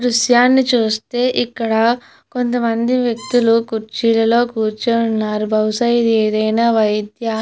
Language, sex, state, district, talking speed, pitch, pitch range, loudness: Telugu, female, Andhra Pradesh, Chittoor, 115 wpm, 230 Hz, 220-245 Hz, -16 LUFS